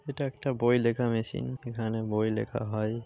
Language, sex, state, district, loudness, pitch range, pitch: Bengali, male, West Bengal, Paschim Medinipur, -30 LUFS, 110-130 Hz, 120 Hz